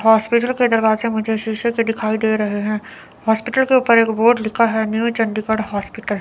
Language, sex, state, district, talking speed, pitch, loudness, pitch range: Hindi, female, Chandigarh, Chandigarh, 205 wpm, 225 Hz, -18 LUFS, 220-235 Hz